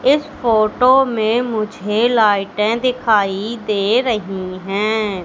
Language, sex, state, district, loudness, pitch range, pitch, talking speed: Hindi, female, Madhya Pradesh, Katni, -17 LUFS, 205-240 Hz, 215 Hz, 105 wpm